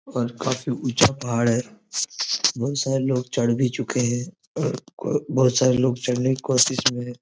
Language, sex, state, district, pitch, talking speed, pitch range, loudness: Hindi, male, Jharkhand, Jamtara, 125 Hz, 175 wpm, 125-130 Hz, -22 LUFS